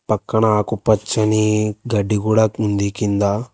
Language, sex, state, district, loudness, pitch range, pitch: Telugu, male, Telangana, Hyderabad, -18 LUFS, 105-110 Hz, 105 Hz